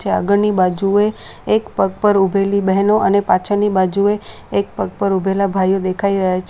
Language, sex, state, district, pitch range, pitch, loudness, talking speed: Gujarati, female, Gujarat, Valsad, 190-205 Hz, 200 Hz, -16 LUFS, 185 wpm